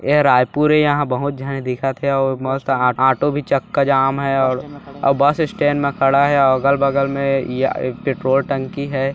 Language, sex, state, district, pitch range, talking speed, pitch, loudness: Hindi, male, Chhattisgarh, Bilaspur, 135-140 Hz, 195 wpm, 140 Hz, -17 LUFS